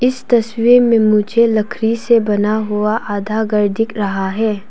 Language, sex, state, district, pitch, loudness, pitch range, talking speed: Hindi, female, Arunachal Pradesh, Papum Pare, 220 Hz, -15 LUFS, 210-230 Hz, 165 wpm